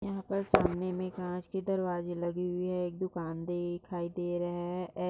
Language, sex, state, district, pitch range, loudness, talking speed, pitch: Hindi, female, Uttar Pradesh, Jyotiba Phule Nagar, 175-185 Hz, -34 LUFS, 190 wpm, 180 Hz